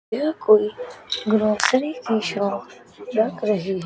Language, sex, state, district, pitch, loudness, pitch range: Hindi, female, Chandigarh, Chandigarh, 220 Hz, -21 LUFS, 210-300 Hz